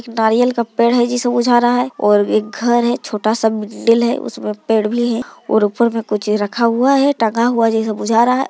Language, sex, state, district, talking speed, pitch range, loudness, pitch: Hindi, female, Bihar, Muzaffarpur, 240 wpm, 220-240 Hz, -15 LUFS, 235 Hz